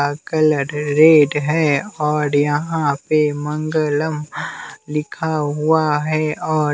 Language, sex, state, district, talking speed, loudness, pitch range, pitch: Hindi, male, Bihar, West Champaran, 105 wpm, -18 LUFS, 145-155 Hz, 150 Hz